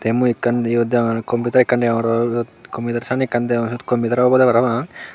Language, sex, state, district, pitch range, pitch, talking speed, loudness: Chakma, male, Tripura, Dhalai, 115-125 Hz, 120 Hz, 185 wpm, -18 LUFS